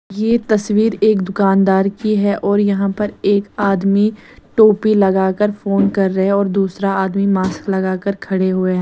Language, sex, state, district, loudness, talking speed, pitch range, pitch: Hindi, female, Chandigarh, Chandigarh, -16 LUFS, 185 wpm, 190-210 Hz, 200 Hz